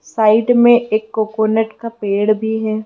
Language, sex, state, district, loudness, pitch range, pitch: Hindi, female, Madhya Pradesh, Dhar, -15 LUFS, 215-225 Hz, 220 Hz